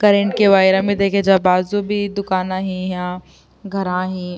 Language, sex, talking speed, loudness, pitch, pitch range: Urdu, female, 180 wpm, -17 LUFS, 190 Hz, 185-200 Hz